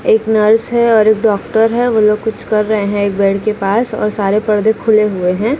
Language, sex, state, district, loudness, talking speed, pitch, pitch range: Hindi, female, Maharashtra, Mumbai Suburban, -13 LUFS, 245 wpm, 215 Hz, 205-220 Hz